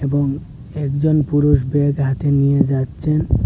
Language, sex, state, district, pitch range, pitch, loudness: Bengali, male, Assam, Hailakandi, 140-145 Hz, 145 Hz, -17 LUFS